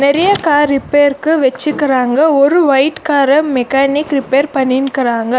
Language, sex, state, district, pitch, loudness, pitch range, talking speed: Tamil, female, Karnataka, Bangalore, 280 Hz, -12 LUFS, 270-295 Hz, 110 wpm